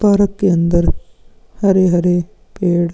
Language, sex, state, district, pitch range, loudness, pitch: Hindi, male, Uttar Pradesh, Muzaffarnagar, 175-200 Hz, -15 LUFS, 180 Hz